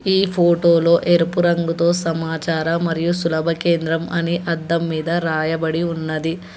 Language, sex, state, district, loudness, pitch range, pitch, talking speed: Telugu, male, Telangana, Hyderabad, -19 LUFS, 165-170 Hz, 170 Hz, 130 wpm